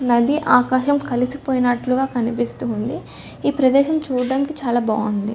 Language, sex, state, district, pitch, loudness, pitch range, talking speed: Telugu, female, Telangana, Karimnagar, 250 Hz, -19 LUFS, 240-275 Hz, 110 wpm